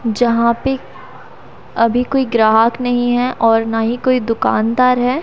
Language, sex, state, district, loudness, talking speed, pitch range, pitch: Hindi, female, Haryana, Rohtak, -15 LUFS, 150 wpm, 230-250 Hz, 240 Hz